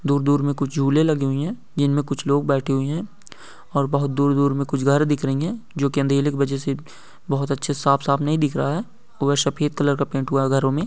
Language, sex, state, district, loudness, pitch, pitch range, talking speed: Hindi, male, Andhra Pradesh, Guntur, -21 LUFS, 140 Hz, 140-145 Hz, 245 wpm